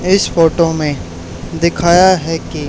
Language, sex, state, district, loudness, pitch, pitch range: Hindi, male, Haryana, Charkhi Dadri, -13 LUFS, 165 Hz, 150-170 Hz